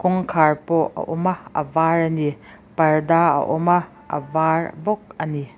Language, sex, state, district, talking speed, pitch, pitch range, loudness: Mizo, female, Mizoram, Aizawl, 170 wpm, 160 Hz, 155-170 Hz, -20 LUFS